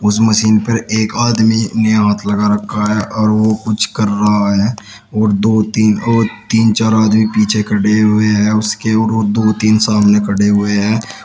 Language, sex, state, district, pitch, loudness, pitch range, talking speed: Hindi, male, Uttar Pradesh, Shamli, 110 Hz, -13 LUFS, 105-110 Hz, 185 wpm